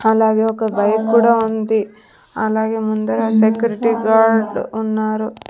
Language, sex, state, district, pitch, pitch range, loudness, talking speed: Telugu, female, Andhra Pradesh, Sri Satya Sai, 220 Hz, 220-225 Hz, -16 LUFS, 110 wpm